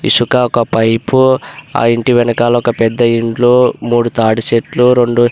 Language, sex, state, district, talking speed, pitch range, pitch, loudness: Telugu, male, Andhra Pradesh, Anantapur, 160 wpm, 115-125 Hz, 120 Hz, -12 LUFS